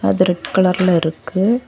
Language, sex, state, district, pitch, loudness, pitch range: Tamil, female, Tamil Nadu, Kanyakumari, 185 Hz, -16 LUFS, 165-190 Hz